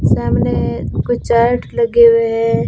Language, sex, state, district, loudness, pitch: Hindi, female, Rajasthan, Bikaner, -14 LUFS, 235 Hz